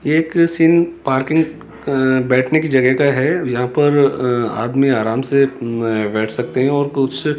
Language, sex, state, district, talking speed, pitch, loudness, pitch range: Hindi, male, Rajasthan, Jaipur, 180 wpm, 135 Hz, -16 LUFS, 125-150 Hz